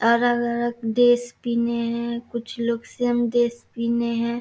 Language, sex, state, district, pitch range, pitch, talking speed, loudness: Hindi, female, Bihar, Samastipur, 235-240 Hz, 235 Hz, 135 wpm, -23 LUFS